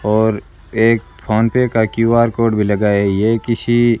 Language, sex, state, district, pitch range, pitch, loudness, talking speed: Hindi, male, Rajasthan, Bikaner, 105-115 Hz, 110 Hz, -15 LUFS, 180 wpm